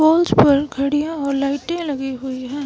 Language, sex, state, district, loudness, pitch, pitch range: Hindi, female, Himachal Pradesh, Shimla, -19 LUFS, 285 Hz, 275-310 Hz